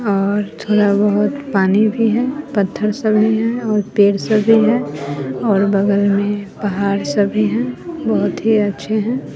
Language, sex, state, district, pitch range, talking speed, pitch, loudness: Hindi, female, Bihar, West Champaran, 200-220 Hz, 165 wpm, 210 Hz, -16 LUFS